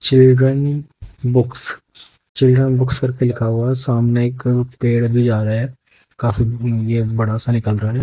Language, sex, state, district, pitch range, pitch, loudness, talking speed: Hindi, male, Haryana, Jhajjar, 115-130 Hz, 120 Hz, -16 LUFS, 155 wpm